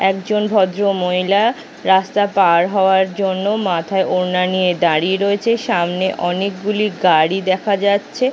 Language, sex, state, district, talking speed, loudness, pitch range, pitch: Bengali, female, West Bengal, Kolkata, 115 wpm, -16 LUFS, 185-205 Hz, 190 Hz